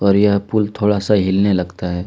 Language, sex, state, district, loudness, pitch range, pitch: Hindi, male, Chhattisgarh, Kabirdham, -16 LUFS, 95-105 Hz, 100 Hz